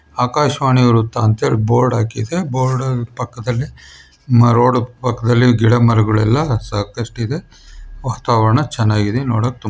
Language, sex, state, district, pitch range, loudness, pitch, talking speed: Kannada, male, Karnataka, Mysore, 115-125 Hz, -16 LUFS, 120 Hz, 115 wpm